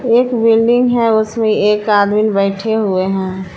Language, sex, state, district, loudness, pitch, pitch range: Hindi, female, Jharkhand, Palamu, -14 LUFS, 215 Hz, 200-230 Hz